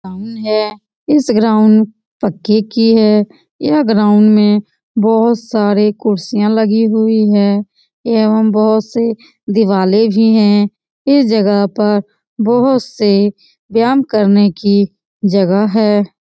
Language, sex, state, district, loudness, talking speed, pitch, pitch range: Hindi, female, Bihar, Lakhisarai, -12 LUFS, 145 wpm, 215 Hz, 205-225 Hz